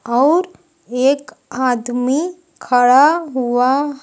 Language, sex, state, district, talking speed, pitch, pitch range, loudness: Hindi, female, Uttar Pradesh, Lucknow, 75 wpm, 265 Hz, 250-290 Hz, -15 LUFS